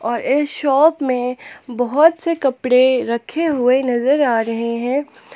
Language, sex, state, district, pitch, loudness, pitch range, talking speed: Hindi, female, Jharkhand, Palamu, 260 Hz, -17 LUFS, 245-295 Hz, 145 wpm